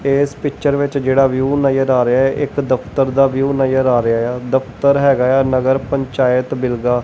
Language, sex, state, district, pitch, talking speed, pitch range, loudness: Punjabi, male, Punjab, Kapurthala, 135 Hz, 195 wpm, 130-140 Hz, -15 LUFS